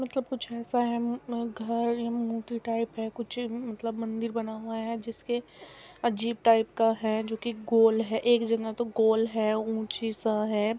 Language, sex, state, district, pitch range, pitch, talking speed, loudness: Hindi, female, Uttar Pradesh, Muzaffarnagar, 225-235 Hz, 230 Hz, 190 wpm, -29 LUFS